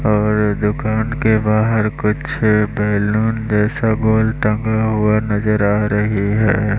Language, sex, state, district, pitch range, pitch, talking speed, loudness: Hindi, male, Bihar, West Champaran, 105-110 Hz, 105 Hz, 125 wpm, -16 LUFS